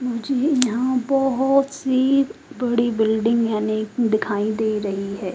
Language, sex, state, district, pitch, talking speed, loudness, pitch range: Hindi, female, Haryana, Charkhi Dadri, 235 Hz, 125 wpm, -21 LUFS, 215-260 Hz